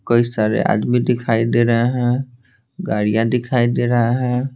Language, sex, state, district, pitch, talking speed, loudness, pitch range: Hindi, male, Bihar, Patna, 120 Hz, 160 wpm, -18 LUFS, 115-125 Hz